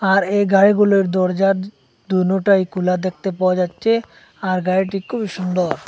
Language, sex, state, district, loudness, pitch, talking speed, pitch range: Bengali, male, Assam, Hailakandi, -18 LUFS, 190 Hz, 145 wpm, 185-200 Hz